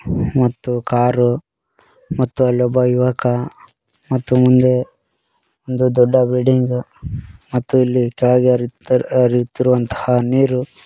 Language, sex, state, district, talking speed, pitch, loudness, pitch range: Kannada, male, Karnataka, Koppal, 95 wpm, 125 Hz, -16 LUFS, 125-130 Hz